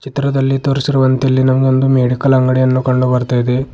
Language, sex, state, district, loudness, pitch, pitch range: Kannada, male, Karnataka, Bidar, -13 LUFS, 130 Hz, 130-135 Hz